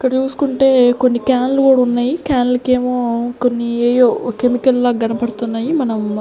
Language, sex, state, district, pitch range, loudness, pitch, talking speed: Telugu, female, Andhra Pradesh, Sri Satya Sai, 240-260 Hz, -15 LUFS, 245 Hz, 115 wpm